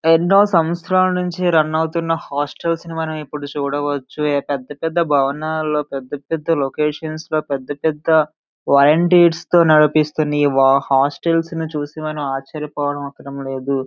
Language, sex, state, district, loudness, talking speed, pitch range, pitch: Telugu, male, Andhra Pradesh, Srikakulam, -18 LUFS, 115 wpm, 145-165 Hz, 155 Hz